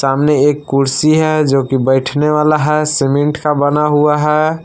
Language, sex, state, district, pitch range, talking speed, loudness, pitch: Hindi, male, Jharkhand, Palamu, 140-150 Hz, 180 wpm, -13 LUFS, 150 Hz